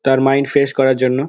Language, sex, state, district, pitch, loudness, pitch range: Bengali, male, West Bengal, Dakshin Dinajpur, 135 Hz, -15 LUFS, 130-140 Hz